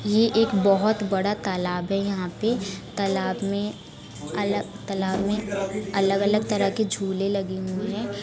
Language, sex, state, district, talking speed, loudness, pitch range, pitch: Hindi, female, Uttar Pradesh, Budaun, 145 wpm, -25 LUFS, 195-210 Hz, 200 Hz